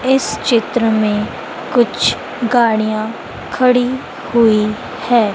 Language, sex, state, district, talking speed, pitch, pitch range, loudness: Hindi, female, Madhya Pradesh, Dhar, 90 wpm, 235 Hz, 215-250 Hz, -15 LUFS